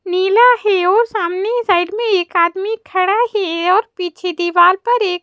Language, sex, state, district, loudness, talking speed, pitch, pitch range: Hindi, female, Madhya Pradesh, Bhopal, -15 LUFS, 170 wpm, 380 Hz, 360-445 Hz